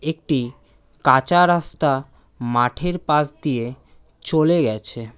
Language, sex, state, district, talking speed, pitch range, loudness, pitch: Bengali, male, West Bengal, Cooch Behar, 95 wpm, 120-160 Hz, -20 LUFS, 140 Hz